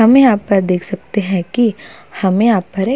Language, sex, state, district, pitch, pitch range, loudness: Hindi, female, Uttar Pradesh, Hamirpur, 200 Hz, 190-230 Hz, -15 LUFS